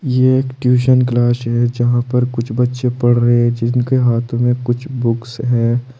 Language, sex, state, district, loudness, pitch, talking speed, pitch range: Hindi, male, Uttar Pradesh, Saharanpur, -15 LUFS, 120 Hz, 180 wpm, 120-125 Hz